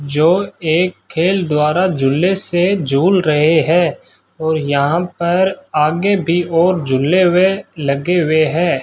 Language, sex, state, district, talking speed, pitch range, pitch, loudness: Hindi, male, Rajasthan, Bikaner, 135 wpm, 155-185 Hz, 170 Hz, -15 LUFS